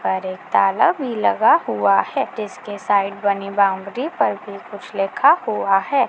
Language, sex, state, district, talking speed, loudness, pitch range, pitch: Hindi, female, Bihar, Madhepura, 170 wpm, -19 LUFS, 195-265 Hz, 205 Hz